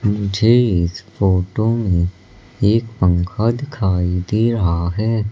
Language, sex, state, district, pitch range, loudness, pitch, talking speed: Hindi, male, Madhya Pradesh, Katni, 90-115 Hz, -18 LUFS, 105 Hz, 115 wpm